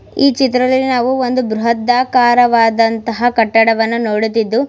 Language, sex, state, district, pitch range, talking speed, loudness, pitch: Kannada, female, Karnataka, Mysore, 225-255 Hz, 100 wpm, -13 LUFS, 240 Hz